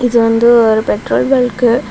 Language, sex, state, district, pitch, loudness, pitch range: Tamil, female, Tamil Nadu, Kanyakumari, 235 Hz, -11 LUFS, 230-245 Hz